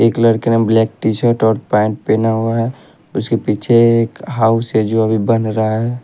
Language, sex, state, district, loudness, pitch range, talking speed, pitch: Hindi, male, Haryana, Rohtak, -15 LUFS, 110-115 Hz, 200 wpm, 115 Hz